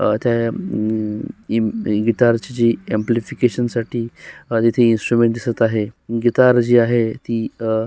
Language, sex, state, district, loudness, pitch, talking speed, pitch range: Marathi, male, Maharashtra, Solapur, -18 LUFS, 115 Hz, 150 wpm, 110-120 Hz